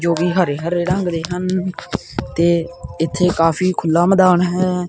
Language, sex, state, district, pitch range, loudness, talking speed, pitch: Punjabi, male, Punjab, Kapurthala, 170-185 Hz, -17 LUFS, 160 wpm, 175 Hz